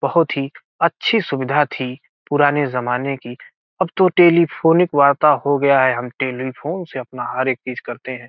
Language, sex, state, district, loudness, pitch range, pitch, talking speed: Hindi, male, Bihar, Gopalganj, -18 LUFS, 130-155 Hz, 140 Hz, 175 wpm